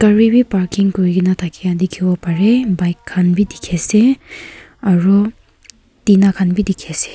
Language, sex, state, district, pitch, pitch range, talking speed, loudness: Nagamese, female, Nagaland, Kohima, 190 Hz, 180-205 Hz, 120 wpm, -15 LUFS